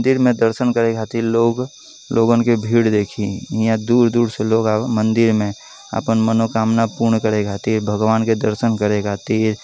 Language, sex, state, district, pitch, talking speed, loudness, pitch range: Bhojpuri, male, Uttar Pradesh, Deoria, 110 Hz, 155 wpm, -17 LUFS, 110-115 Hz